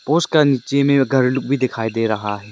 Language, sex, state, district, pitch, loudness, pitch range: Hindi, male, Arunachal Pradesh, Lower Dibang Valley, 130 Hz, -17 LUFS, 115-140 Hz